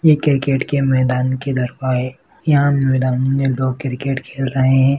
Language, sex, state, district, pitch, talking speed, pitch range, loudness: Hindi, male, Bihar, Jahanabad, 135 Hz, 180 wpm, 130-140 Hz, -17 LUFS